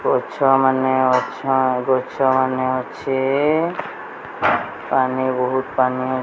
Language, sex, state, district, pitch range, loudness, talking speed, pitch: Odia, female, Odisha, Sambalpur, 130-135 Hz, -19 LUFS, 85 wpm, 130 Hz